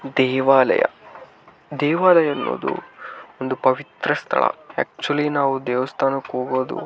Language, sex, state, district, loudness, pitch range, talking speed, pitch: Kannada, male, Karnataka, Raichur, -20 LUFS, 130-145 Hz, 95 wpm, 135 Hz